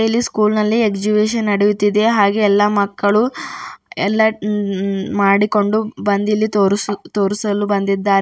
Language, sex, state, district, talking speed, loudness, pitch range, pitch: Kannada, female, Karnataka, Bidar, 125 wpm, -16 LUFS, 200-215 Hz, 205 Hz